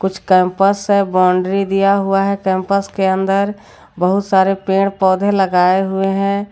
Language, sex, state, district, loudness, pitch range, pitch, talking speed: Hindi, female, Jharkhand, Garhwa, -15 LUFS, 190-200 Hz, 195 Hz, 145 wpm